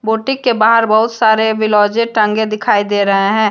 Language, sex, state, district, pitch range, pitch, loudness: Hindi, female, Jharkhand, Deoghar, 210-230 Hz, 220 Hz, -13 LUFS